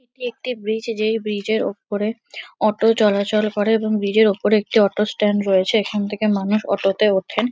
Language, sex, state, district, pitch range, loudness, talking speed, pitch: Bengali, female, West Bengal, Kolkata, 205-220 Hz, -19 LUFS, 225 wpm, 215 Hz